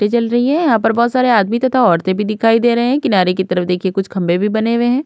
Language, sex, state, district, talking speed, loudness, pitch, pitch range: Hindi, female, Uttar Pradesh, Budaun, 310 wpm, -14 LUFS, 225 Hz, 190-240 Hz